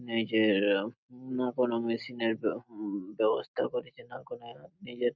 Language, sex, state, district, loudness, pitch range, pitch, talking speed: Bengali, male, West Bengal, Purulia, -31 LUFS, 115-175 Hz, 125 Hz, 140 wpm